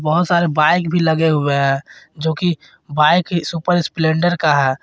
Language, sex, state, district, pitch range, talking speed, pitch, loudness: Hindi, male, Jharkhand, Garhwa, 150-175 Hz, 185 wpm, 160 Hz, -16 LUFS